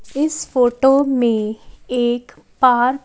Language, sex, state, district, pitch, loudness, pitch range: Hindi, female, Chandigarh, Chandigarh, 250 Hz, -17 LUFS, 240-270 Hz